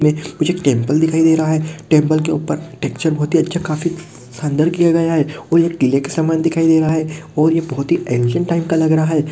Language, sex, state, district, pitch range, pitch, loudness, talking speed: Hindi, male, Rajasthan, Nagaur, 150-165 Hz, 160 Hz, -16 LUFS, 245 wpm